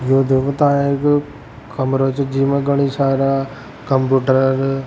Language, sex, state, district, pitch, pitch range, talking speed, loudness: Rajasthani, male, Rajasthan, Churu, 135 Hz, 135-140 Hz, 145 wpm, -17 LUFS